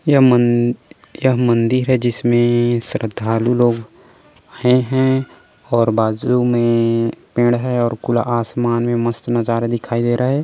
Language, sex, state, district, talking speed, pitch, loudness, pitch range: Chhattisgarhi, male, Chhattisgarh, Korba, 140 wpm, 120 Hz, -17 LUFS, 115-125 Hz